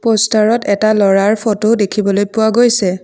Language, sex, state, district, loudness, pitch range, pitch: Assamese, female, Assam, Sonitpur, -13 LUFS, 200-225 Hz, 215 Hz